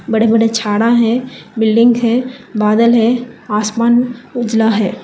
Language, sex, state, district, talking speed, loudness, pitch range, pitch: Hindi, female, Telangana, Hyderabad, 130 wpm, -13 LUFS, 220-240 Hz, 230 Hz